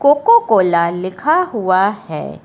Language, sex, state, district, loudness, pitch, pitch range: Hindi, female, Uttar Pradesh, Lucknow, -14 LUFS, 185 Hz, 170-215 Hz